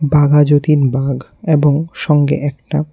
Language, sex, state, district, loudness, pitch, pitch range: Bengali, male, Tripura, West Tripura, -14 LUFS, 145 Hz, 145-150 Hz